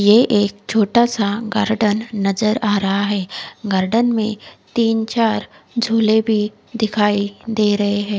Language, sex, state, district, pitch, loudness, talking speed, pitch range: Hindi, female, Odisha, Khordha, 215 Hz, -18 LUFS, 140 wpm, 205-225 Hz